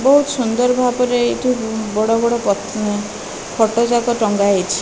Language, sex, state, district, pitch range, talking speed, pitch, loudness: Odia, female, Odisha, Malkangiri, 210-245 Hz, 125 wpm, 230 Hz, -17 LUFS